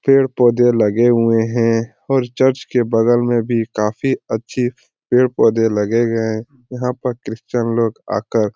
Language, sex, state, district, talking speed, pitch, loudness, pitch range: Hindi, male, Bihar, Lakhisarai, 155 wpm, 120 Hz, -17 LUFS, 115-125 Hz